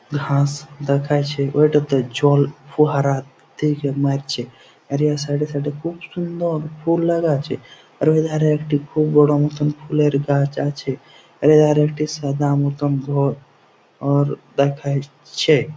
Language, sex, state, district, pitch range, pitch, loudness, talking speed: Bengali, male, West Bengal, Jhargram, 140-150 Hz, 145 Hz, -19 LUFS, 145 wpm